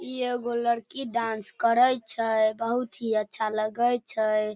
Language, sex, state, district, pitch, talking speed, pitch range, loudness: Maithili, female, Bihar, Darbhanga, 230 Hz, 145 wpm, 220-240 Hz, -26 LUFS